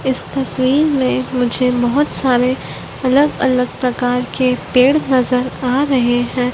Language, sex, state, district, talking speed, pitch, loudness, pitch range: Hindi, female, Madhya Pradesh, Dhar, 135 wpm, 255 Hz, -15 LUFS, 250-265 Hz